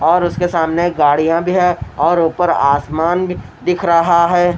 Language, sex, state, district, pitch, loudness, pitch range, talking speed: Hindi, male, Bihar, Katihar, 170 Hz, -14 LUFS, 165-175 Hz, 170 wpm